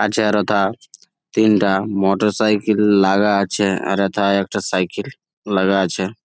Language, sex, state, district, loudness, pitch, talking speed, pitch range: Bengali, male, West Bengal, Jalpaiguri, -17 LUFS, 100 Hz, 115 wpm, 95-105 Hz